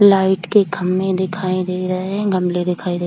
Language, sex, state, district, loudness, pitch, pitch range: Hindi, female, Bihar, Kishanganj, -18 LUFS, 185 Hz, 180-190 Hz